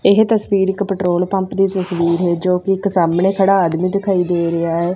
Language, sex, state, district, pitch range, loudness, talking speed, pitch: Punjabi, female, Punjab, Fazilka, 175-195 Hz, -16 LUFS, 220 wpm, 185 Hz